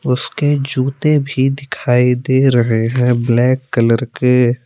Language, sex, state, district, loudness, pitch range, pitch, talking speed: Hindi, male, Jharkhand, Palamu, -15 LUFS, 120-135 Hz, 125 Hz, 130 wpm